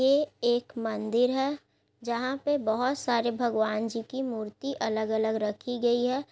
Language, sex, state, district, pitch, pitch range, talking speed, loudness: Hindi, female, Bihar, Gaya, 240 Hz, 220-260 Hz, 170 wpm, -29 LUFS